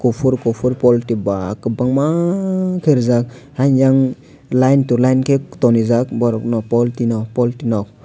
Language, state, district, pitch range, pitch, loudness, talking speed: Kokborok, Tripura, West Tripura, 115-135 Hz, 125 Hz, -16 LUFS, 140 wpm